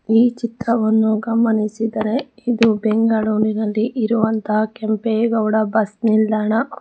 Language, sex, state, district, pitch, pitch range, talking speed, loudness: Kannada, female, Karnataka, Bangalore, 220 Hz, 215-230 Hz, 80 wpm, -18 LUFS